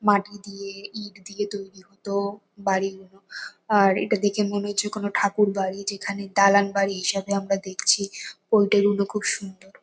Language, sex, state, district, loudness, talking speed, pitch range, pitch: Bengali, female, West Bengal, North 24 Parganas, -23 LUFS, 160 wpm, 195-205 Hz, 200 Hz